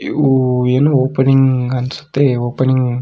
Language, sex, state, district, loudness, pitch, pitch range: Kannada, male, Karnataka, Raichur, -14 LUFS, 130 Hz, 125-135 Hz